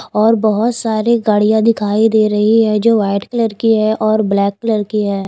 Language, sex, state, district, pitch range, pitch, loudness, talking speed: Hindi, female, Himachal Pradesh, Shimla, 210-225 Hz, 215 Hz, -14 LUFS, 205 wpm